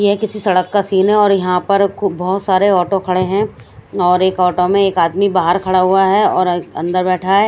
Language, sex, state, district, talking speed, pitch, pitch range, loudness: Hindi, female, Chandigarh, Chandigarh, 235 wpm, 190 Hz, 180-200 Hz, -14 LUFS